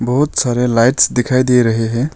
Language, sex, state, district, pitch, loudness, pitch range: Hindi, male, Arunachal Pradesh, Longding, 125 Hz, -14 LUFS, 120-130 Hz